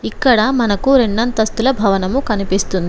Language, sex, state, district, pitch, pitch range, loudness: Telugu, female, Telangana, Komaram Bheem, 220 Hz, 195-250 Hz, -15 LUFS